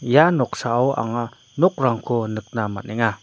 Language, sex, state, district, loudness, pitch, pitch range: Garo, male, Meghalaya, North Garo Hills, -21 LUFS, 120 Hz, 115-130 Hz